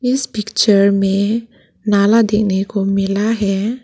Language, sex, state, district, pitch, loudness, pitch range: Hindi, female, Arunachal Pradesh, Lower Dibang Valley, 210 Hz, -15 LUFS, 195-225 Hz